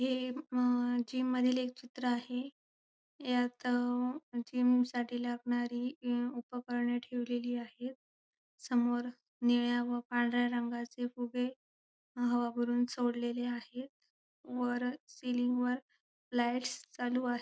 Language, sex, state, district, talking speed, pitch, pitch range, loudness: Marathi, female, Maharashtra, Sindhudurg, 100 wpm, 245 Hz, 240-250 Hz, -35 LUFS